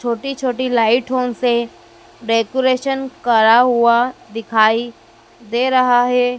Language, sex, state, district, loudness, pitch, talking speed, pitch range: Hindi, female, Madhya Pradesh, Dhar, -16 LUFS, 245 Hz, 105 wpm, 230-255 Hz